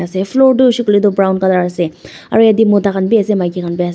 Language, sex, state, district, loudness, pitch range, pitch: Nagamese, female, Nagaland, Dimapur, -12 LUFS, 180-220 Hz, 195 Hz